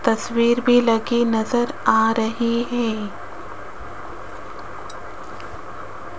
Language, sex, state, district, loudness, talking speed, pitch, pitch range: Hindi, female, Rajasthan, Jaipur, -20 LUFS, 70 wpm, 235 Hz, 225-240 Hz